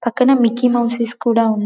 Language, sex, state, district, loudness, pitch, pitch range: Telugu, female, Telangana, Karimnagar, -16 LUFS, 235 Hz, 230-245 Hz